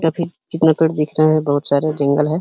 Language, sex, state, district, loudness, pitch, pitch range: Hindi, male, Uttar Pradesh, Hamirpur, -17 LUFS, 155 Hz, 145-160 Hz